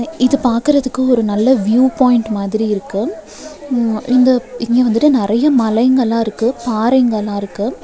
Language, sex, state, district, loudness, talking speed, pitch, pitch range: Tamil, female, Tamil Nadu, Nilgiris, -14 LUFS, 130 wpm, 240 Hz, 220-255 Hz